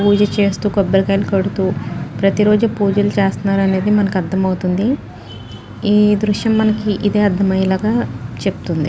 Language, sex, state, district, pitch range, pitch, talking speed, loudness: Telugu, female, Telangana, Nalgonda, 190-210 Hz, 200 Hz, 100 wpm, -16 LUFS